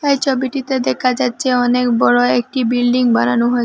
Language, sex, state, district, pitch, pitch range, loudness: Bengali, female, Assam, Hailakandi, 245 Hz, 240-260 Hz, -15 LUFS